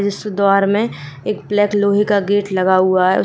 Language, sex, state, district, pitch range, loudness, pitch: Hindi, female, Uttar Pradesh, Jyotiba Phule Nagar, 185-205 Hz, -16 LUFS, 200 Hz